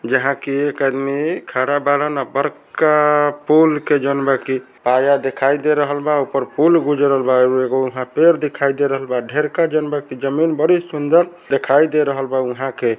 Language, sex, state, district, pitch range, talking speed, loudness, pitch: Bhojpuri, male, Bihar, Saran, 135-150 Hz, 190 wpm, -17 LUFS, 140 Hz